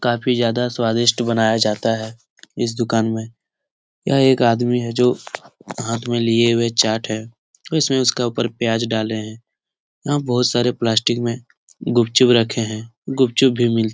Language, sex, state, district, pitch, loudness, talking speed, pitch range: Hindi, male, Bihar, Jahanabad, 120 Hz, -18 LUFS, 170 wpm, 115-125 Hz